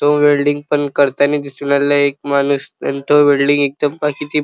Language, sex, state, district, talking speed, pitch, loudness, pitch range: Marathi, male, Maharashtra, Chandrapur, 175 wpm, 145 Hz, -15 LUFS, 140-145 Hz